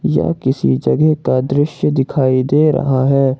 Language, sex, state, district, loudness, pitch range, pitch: Hindi, male, Jharkhand, Ranchi, -15 LUFS, 105-145 Hz, 135 Hz